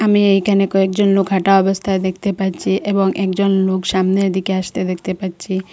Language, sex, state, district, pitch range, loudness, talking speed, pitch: Bengali, female, Assam, Hailakandi, 190-195 Hz, -16 LUFS, 170 wpm, 195 Hz